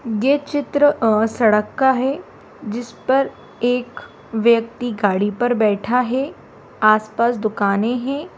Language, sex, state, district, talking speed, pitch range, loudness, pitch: Bhojpuri, female, Bihar, Saran, 115 wpm, 215-265 Hz, -19 LUFS, 235 Hz